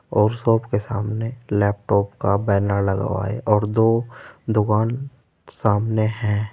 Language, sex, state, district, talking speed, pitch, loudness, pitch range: Hindi, male, Uttar Pradesh, Saharanpur, 140 wpm, 105 Hz, -21 LUFS, 100-115 Hz